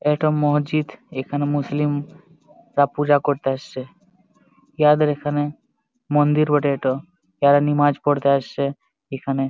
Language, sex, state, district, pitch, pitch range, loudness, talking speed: Bengali, male, Jharkhand, Jamtara, 145 Hz, 140-150 Hz, -20 LUFS, 115 wpm